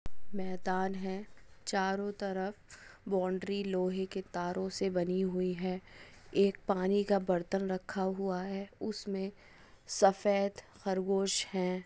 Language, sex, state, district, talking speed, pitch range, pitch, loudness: Hindi, female, West Bengal, Dakshin Dinajpur, 110 wpm, 185-200 Hz, 190 Hz, -34 LUFS